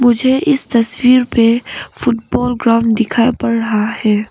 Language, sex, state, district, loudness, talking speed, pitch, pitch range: Hindi, female, Arunachal Pradesh, Papum Pare, -13 LUFS, 140 wpm, 235 Hz, 230-245 Hz